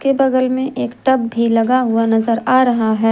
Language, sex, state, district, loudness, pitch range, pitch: Hindi, female, Jharkhand, Garhwa, -15 LUFS, 225-260 Hz, 240 Hz